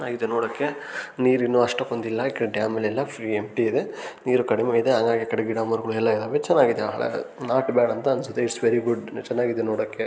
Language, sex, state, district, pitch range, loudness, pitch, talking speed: Kannada, male, Karnataka, Gulbarga, 110-120 Hz, -24 LUFS, 115 Hz, 180 wpm